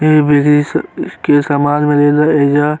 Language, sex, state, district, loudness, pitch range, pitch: Bhojpuri, male, Uttar Pradesh, Gorakhpur, -12 LUFS, 145-150 Hz, 145 Hz